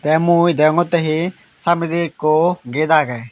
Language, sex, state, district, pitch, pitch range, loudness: Chakma, male, Tripura, Dhalai, 160 Hz, 155-170 Hz, -16 LUFS